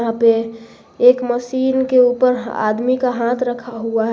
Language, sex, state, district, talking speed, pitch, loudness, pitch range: Hindi, female, Jharkhand, Garhwa, 175 wpm, 245 Hz, -17 LUFS, 230-250 Hz